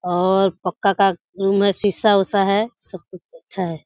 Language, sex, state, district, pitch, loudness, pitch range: Hindi, female, Bihar, Kishanganj, 195 Hz, -19 LUFS, 180-200 Hz